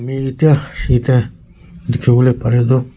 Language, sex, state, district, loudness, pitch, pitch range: Nagamese, male, Nagaland, Kohima, -14 LUFS, 125 Hz, 125-135 Hz